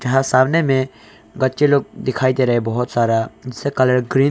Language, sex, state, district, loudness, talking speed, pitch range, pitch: Hindi, male, Arunachal Pradesh, Longding, -18 LUFS, 210 wpm, 125-135 Hz, 130 Hz